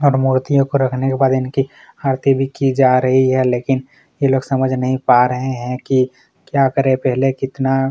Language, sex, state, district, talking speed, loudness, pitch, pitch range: Hindi, male, Chhattisgarh, Kabirdham, 190 wpm, -16 LUFS, 130 Hz, 130-135 Hz